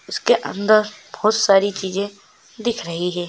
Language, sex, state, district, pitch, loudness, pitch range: Hindi, male, Maharashtra, Solapur, 205 Hz, -19 LUFS, 190-215 Hz